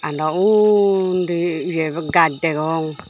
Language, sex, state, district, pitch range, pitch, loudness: Chakma, female, Tripura, Dhalai, 155-185 Hz, 170 Hz, -18 LUFS